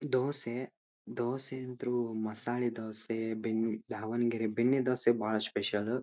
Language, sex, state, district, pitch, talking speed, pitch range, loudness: Kannada, male, Karnataka, Dharwad, 120 Hz, 110 wpm, 110-125 Hz, -34 LUFS